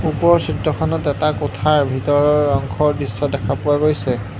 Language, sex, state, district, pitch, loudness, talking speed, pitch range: Assamese, male, Assam, Hailakandi, 145 Hz, -18 LUFS, 135 wpm, 135-150 Hz